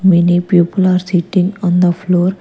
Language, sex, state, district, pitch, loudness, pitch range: English, female, Punjab, Kapurthala, 180 Hz, -13 LUFS, 175-185 Hz